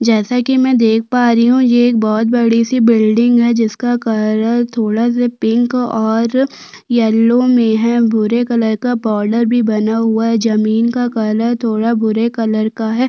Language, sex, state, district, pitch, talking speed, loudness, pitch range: Hindi, female, Chhattisgarh, Sukma, 230 Hz, 180 wpm, -13 LUFS, 220-240 Hz